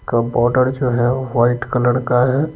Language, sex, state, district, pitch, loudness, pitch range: Hindi, male, Bihar, Patna, 125 Hz, -17 LUFS, 120-130 Hz